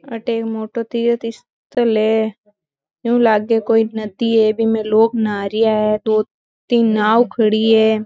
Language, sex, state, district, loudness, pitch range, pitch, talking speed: Marwari, female, Rajasthan, Nagaur, -16 LUFS, 215-230 Hz, 220 Hz, 140 wpm